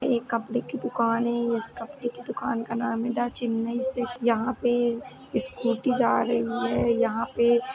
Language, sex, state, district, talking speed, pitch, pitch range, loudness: Hindi, female, Uttar Pradesh, Jalaun, 180 wpm, 240 Hz, 230-245 Hz, -26 LUFS